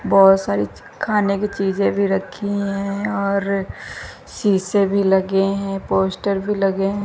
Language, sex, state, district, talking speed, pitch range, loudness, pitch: Hindi, female, Punjab, Kapurthala, 145 wpm, 195-200 Hz, -19 LUFS, 195 Hz